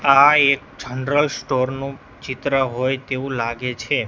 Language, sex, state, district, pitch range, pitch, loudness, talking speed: Gujarati, male, Gujarat, Gandhinagar, 130-140 Hz, 135 Hz, -19 LUFS, 145 wpm